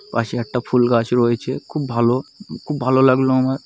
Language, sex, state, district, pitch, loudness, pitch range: Bengali, male, West Bengal, North 24 Parganas, 130 Hz, -18 LUFS, 120-130 Hz